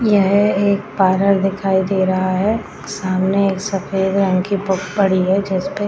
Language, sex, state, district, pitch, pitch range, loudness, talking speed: Hindi, female, Bihar, Madhepura, 195 Hz, 190-200 Hz, -17 LUFS, 175 wpm